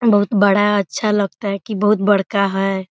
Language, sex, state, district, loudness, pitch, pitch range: Hindi, female, Bihar, Muzaffarpur, -17 LUFS, 205 Hz, 195-210 Hz